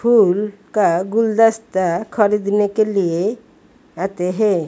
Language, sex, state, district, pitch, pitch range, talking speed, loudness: Hindi, female, Odisha, Malkangiri, 205 Hz, 185-220 Hz, 105 wpm, -17 LUFS